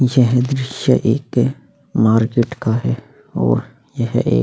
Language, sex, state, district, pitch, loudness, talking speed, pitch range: Hindi, male, Chhattisgarh, Sukma, 120 Hz, -17 LUFS, 135 wpm, 110-130 Hz